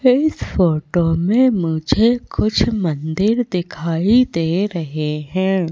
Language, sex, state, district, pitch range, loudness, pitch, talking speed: Hindi, female, Madhya Pradesh, Katni, 165-220 Hz, -18 LUFS, 180 Hz, 105 wpm